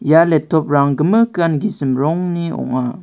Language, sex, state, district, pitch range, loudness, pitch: Garo, male, Meghalaya, West Garo Hills, 140-170 Hz, -16 LUFS, 160 Hz